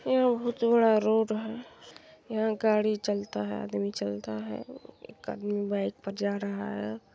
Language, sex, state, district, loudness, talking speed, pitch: Hindi, female, Bihar, Supaul, -29 LUFS, 160 wpm, 205 Hz